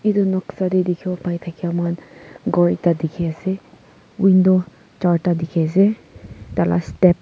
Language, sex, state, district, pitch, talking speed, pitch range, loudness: Nagamese, female, Nagaland, Kohima, 175 Hz, 175 wpm, 165-185 Hz, -19 LUFS